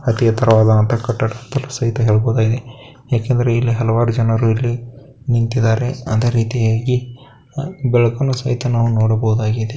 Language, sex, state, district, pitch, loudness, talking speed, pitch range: Kannada, male, Karnataka, Bellary, 120 Hz, -17 LUFS, 125 wpm, 115-125 Hz